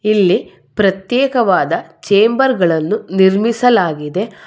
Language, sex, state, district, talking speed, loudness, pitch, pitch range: Kannada, female, Karnataka, Bangalore, 65 wpm, -14 LUFS, 205 Hz, 190-235 Hz